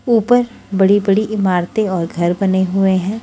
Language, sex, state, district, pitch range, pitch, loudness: Hindi, female, Haryana, Charkhi Dadri, 185-215 Hz, 195 Hz, -15 LUFS